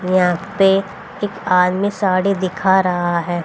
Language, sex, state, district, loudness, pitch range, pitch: Hindi, female, Haryana, Rohtak, -17 LUFS, 180-195 Hz, 185 Hz